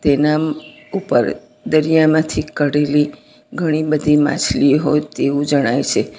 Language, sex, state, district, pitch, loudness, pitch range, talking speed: Gujarati, female, Gujarat, Valsad, 150 Hz, -16 LUFS, 145-155 Hz, 115 wpm